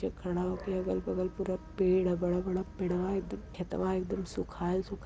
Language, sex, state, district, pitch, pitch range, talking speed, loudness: Hindi, female, Uttar Pradesh, Varanasi, 185 Hz, 180-190 Hz, 165 wpm, -33 LUFS